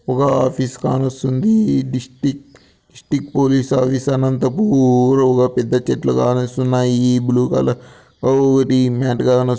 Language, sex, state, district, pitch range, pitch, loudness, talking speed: Telugu, male, Andhra Pradesh, Anantapur, 125-135 Hz, 130 Hz, -16 LUFS, 115 wpm